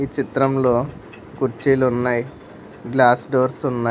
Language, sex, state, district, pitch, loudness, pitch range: Telugu, male, Telangana, Hyderabad, 130 Hz, -19 LUFS, 120-135 Hz